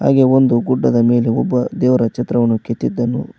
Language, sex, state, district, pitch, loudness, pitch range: Kannada, male, Karnataka, Koppal, 120 Hz, -15 LUFS, 115-125 Hz